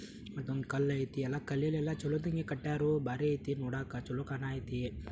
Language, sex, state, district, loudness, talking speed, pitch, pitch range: Kannada, male, Karnataka, Belgaum, -36 LUFS, 115 wpm, 140 Hz, 135-150 Hz